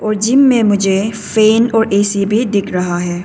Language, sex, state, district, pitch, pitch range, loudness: Hindi, female, Arunachal Pradesh, Papum Pare, 205 Hz, 195-225 Hz, -13 LUFS